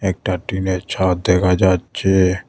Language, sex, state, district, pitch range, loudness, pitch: Bengali, male, Tripura, West Tripura, 90-95 Hz, -18 LUFS, 95 Hz